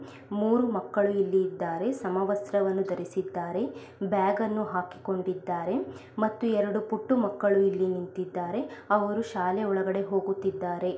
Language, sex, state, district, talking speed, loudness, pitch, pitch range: Kannada, female, Karnataka, Belgaum, 105 wpm, -29 LUFS, 195 Hz, 185-210 Hz